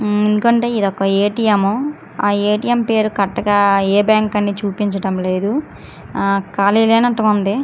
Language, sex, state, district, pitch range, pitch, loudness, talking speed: Telugu, female, Andhra Pradesh, Srikakulam, 200-225 Hz, 205 Hz, -16 LUFS, 125 wpm